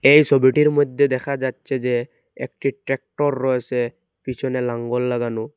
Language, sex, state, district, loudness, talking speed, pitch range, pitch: Bengali, male, Assam, Hailakandi, -20 LUFS, 130 wpm, 125-140 Hz, 130 Hz